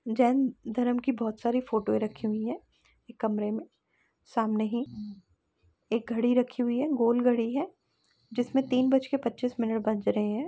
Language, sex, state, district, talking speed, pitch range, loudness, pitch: Hindi, female, Uttar Pradesh, Etah, 170 wpm, 220-250 Hz, -29 LUFS, 235 Hz